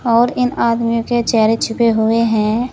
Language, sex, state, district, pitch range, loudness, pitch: Hindi, female, Uttar Pradesh, Saharanpur, 225-240 Hz, -15 LUFS, 230 Hz